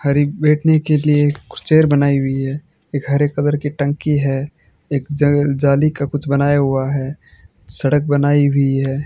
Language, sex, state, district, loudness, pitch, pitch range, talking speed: Hindi, male, Rajasthan, Bikaner, -16 LUFS, 145 Hz, 140-145 Hz, 185 wpm